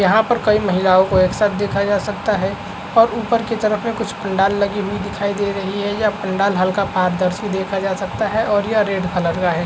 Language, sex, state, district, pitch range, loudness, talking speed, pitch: Hindi, male, Maharashtra, Chandrapur, 190-210 Hz, -18 LUFS, 235 wpm, 200 Hz